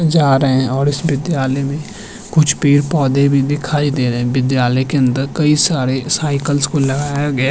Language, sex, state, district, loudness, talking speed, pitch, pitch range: Hindi, male, Uttarakhand, Tehri Garhwal, -15 LUFS, 185 wpm, 140 Hz, 135-150 Hz